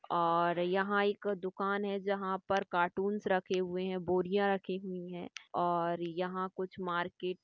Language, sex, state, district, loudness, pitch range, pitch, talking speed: Hindi, female, Maharashtra, Nagpur, -34 LUFS, 175-195 Hz, 185 Hz, 160 wpm